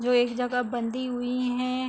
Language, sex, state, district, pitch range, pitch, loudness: Hindi, female, Uttar Pradesh, Hamirpur, 245-250 Hz, 250 Hz, -27 LUFS